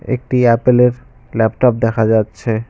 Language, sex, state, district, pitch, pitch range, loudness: Bengali, male, West Bengal, Cooch Behar, 120 Hz, 110-125 Hz, -14 LUFS